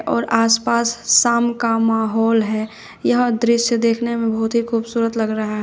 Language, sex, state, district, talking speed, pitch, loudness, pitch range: Hindi, female, Uttar Pradesh, Shamli, 170 wpm, 230 Hz, -18 LUFS, 225-235 Hz